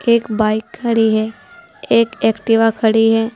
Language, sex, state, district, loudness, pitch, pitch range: Hindi, female, Uttar Pradesh, Saharanpur, -15 LUFS, 225 Hz, 220-230 Hz